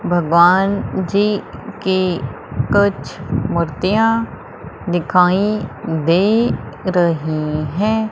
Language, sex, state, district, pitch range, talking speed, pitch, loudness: Hindi, female, Madhya Pradesh, Umaria, 165-205 Hz, 65 wpm, 185 Hz, -17 LUFS